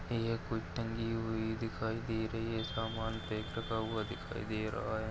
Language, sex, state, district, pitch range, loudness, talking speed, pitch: Hindi, male, Maharashtra, Nagpur, 110-115 Hz, -38 LUFS, 190 wpm, 110 Hz